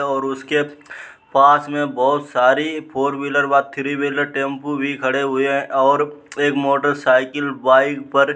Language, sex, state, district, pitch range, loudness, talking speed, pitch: Hindi, male, Uttar Pradesh, Muzaffarnagar, 135-145 Hz, -18 LUFS, 165 wpm, 140 Hz